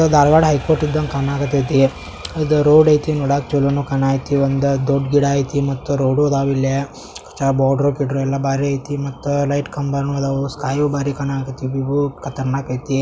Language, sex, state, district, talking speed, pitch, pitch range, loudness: Kannada, male, Karnataka, Belgaum, 155 wpm, 140 Hz, 135-145 Hz, -18 LUFS